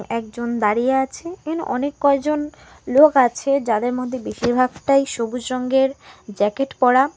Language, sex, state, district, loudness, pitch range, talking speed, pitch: Bengali, female, West Bengal, Alipurduar, -19 LUFS, 240-280 Hz, 125 wpm, 260 Hz